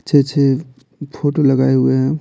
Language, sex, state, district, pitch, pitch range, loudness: Hindi, male, Bihar, Patna, 135 Hz, 130-145 Hz, -15 LUFS